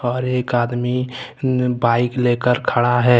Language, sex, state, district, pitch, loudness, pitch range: Hindi, male, Jharkhand, Deoghar, 125 Hz, -19 LUFS, 120-125 Hz